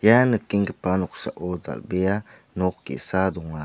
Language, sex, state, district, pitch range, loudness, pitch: Garo, male, Meghalaya, West Garo Hills, 90-100 Hz, -24 LUFS, 95 Hz